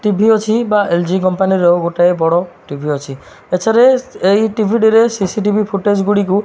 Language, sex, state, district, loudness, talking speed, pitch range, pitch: Odia, male, Odisha, Malkangiri, -14 LUFS, 175 wpm, 175-215 Hz, 200 Hz